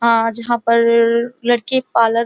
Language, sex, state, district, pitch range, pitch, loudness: Hindi, female, Uttar Pradesh, Muzaffarnagar, 230-240 Hz, 235 Hz, -16 LUFS